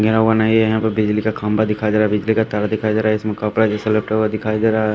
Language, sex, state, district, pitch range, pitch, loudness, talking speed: Hindi, male, Haryana, Charkhi Dadri, 105-110 Hz, 110 Hz, -17 LUFS, 315 wpm